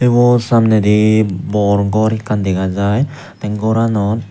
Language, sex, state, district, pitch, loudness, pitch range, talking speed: Chakma, male, Tripura, Unakoti, 110 Hz, -14 LUFS, 100-115 Hz, 125 wpm